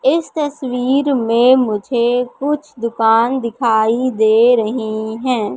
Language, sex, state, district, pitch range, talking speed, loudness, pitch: Hindi, female, Madhya Pradesh, Katni, 225-260 Hz, 110 wpm, -15 LUFS, 240 Hz